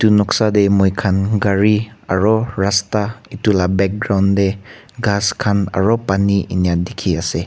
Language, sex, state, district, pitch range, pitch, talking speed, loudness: Nagamese, male, Nagaland, Kohima, 95-105 Hz, 100 Hz, 145 wpm, -16 LUFS